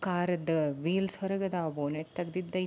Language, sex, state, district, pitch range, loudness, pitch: Kannada, female, Karnataka, Belgaum, 160-185 Hz, -32 LUFS, 175 Hz